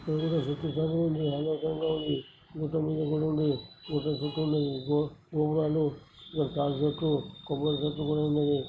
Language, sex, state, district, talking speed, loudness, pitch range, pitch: Telugu, male, Telangana, Nalgonda, 140 wpm, -30 LUFS, 145-155 Hz, 150 Hz